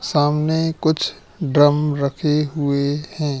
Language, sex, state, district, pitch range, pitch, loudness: Hindi, male, Madhya Pradesh, Katni, 145-155 Hz, 150 Hz, -19 LUFS